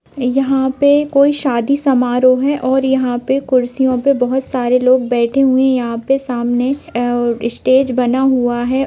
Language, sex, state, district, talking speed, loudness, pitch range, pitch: Hindi, female, Bihar, Bhagalpur, 170 wpm, -14 LUFS, 245-270 Hz, 260 Hz